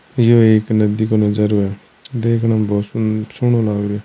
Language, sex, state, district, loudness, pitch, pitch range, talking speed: Hindi, male, Rajasthan, Churu, -16 LUFS, 110 Hz, 105-115 Hz, 190 wpm